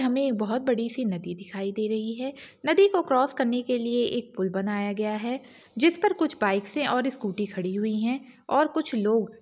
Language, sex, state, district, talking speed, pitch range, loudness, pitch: Kumaoni, female, Uttarakhand, Uttarkashi, 215 wpm, 210-265 Hz, -26 LUFS, 240 Hz